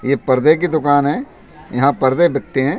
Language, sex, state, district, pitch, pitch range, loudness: Hindi, male, Uttar Pradesh, Budaun, 140 Hz, 130-150 Hz, -15 LUFS